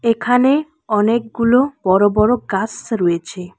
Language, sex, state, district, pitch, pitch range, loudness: Bengali, female, West Bengal, Alipurduar, 225 Hz, 200-245 Hz, -16 LUFS